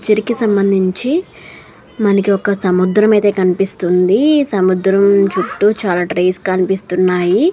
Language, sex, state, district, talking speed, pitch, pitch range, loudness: Telugu, female, Andhra Pradesh, Srikakulam, 110 wpm, 195 Hz, 185-210 Hz, -13 LUFS